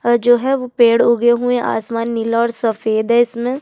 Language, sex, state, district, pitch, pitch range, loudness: Hindi, female, Chhattisgarh, Sukma, 235 Hz, 230-245 Hz, -15 LUFS